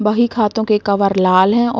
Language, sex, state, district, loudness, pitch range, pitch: Hindi, female, Uttar Pradesh, Deoria, -15 LUFS, 200-225 Hz, 210 Hz